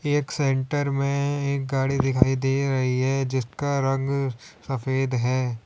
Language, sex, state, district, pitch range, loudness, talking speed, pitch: Hindi, male, Uttar Pradesh, Lalitpur, 130-140 Hz, -24 LUFS, 140 wpm, 135 Hz